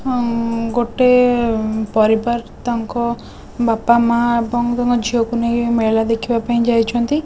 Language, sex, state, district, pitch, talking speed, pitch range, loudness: Odia, female, Odisha, Khordha, 235 Hz, 115 wpm, 230-240 Hz, -17 LUFS